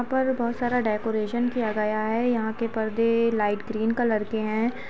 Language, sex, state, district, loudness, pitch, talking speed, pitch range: Hindi, female, Bihar, Vaishali, -25 LUFS, 230 Hz, 195 wpm, 215-240 Hz